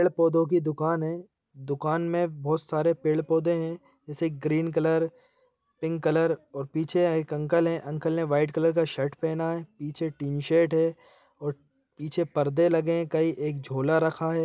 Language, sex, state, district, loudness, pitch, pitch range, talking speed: Hindi, male, Chhattisgarh, Bilaspur, -27 LUFS, 160 Hz, 155-165 Hz, 170 wpm